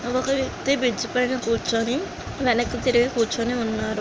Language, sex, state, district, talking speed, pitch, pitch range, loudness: Telugu, female, Andhra Pradesh, Srikakulam, 150 wpm, 245 Hz, 230-255 Hz, -23 LUFS